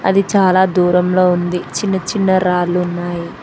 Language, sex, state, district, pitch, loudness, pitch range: Telugu, female, Telangana, Mahabubabad, 180 Hz, -15 LUFS, 175-190 Hz